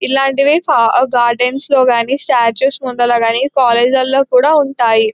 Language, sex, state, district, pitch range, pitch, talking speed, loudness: Telugu, male, Telangana, Nalgonda, 235-275 Hz, 255 Hz, 140 wpm, -12 LUFS